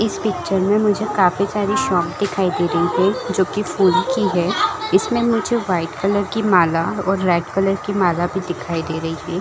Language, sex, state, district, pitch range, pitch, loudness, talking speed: Chhattisgarhi, female, Chhattisgarh, Jashpur, 175-210 Hz, 190 Hz, -19 LUFS, 205 wpm